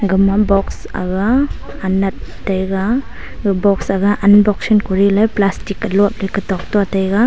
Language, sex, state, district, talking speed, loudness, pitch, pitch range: Wancho, female, Arunachal Pradesh, Longding, 130 wpm, -16 LUFS, 200 Hz, 195-205 Hz